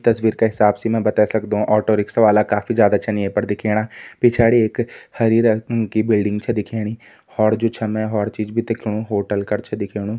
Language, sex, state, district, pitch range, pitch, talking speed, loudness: Garhwali, male, Uttarakhand, Tehri Garhwal, 105-115 Hz, 110 Hz, 210 wpm, -19 LUFS